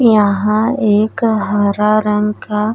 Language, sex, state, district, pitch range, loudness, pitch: Bhojpuri, female, Uttar Pradesh, Gorakhpur, 210-220 Hz, -14 LUFS, 210 Hz